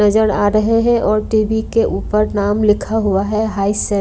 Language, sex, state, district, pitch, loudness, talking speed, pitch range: Hindi, female, Punjab, Kapurthala, 215 Hz, -15 LUFS, 225 wpm, 205-220 Hz